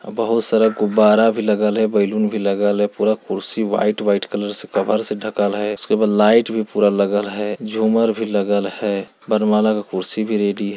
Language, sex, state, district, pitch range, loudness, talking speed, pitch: Hindi, male, Bihar, Jamui, 100-110 Hz, -18 LUFS, 205 wpm, 105 Hz